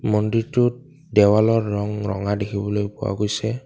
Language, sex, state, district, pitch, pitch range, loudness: Assamese, male, Assam, Kamrup Metropolitan, 105 Hz, 105-115 Hz, -21 LUFS